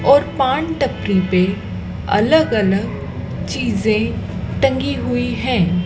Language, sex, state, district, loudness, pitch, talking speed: Hindi, female, Madhya Pradesh, Dhar, -18 LUFS, 195 Hz, 100 wpm